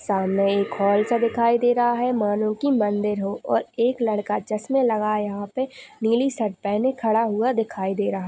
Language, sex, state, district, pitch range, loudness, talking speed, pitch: Hindi, female, Chhattisgarh, Jashpur, 205-240 Hz, -22 LUFS, 195 wpm, 215 Hz